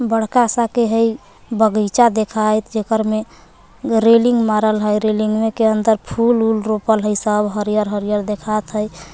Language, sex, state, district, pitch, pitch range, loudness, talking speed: Magahi, female, Jharkhand, Palamu, 215 Hz, 215-225 Hz, -17 LUFS, 150 wpm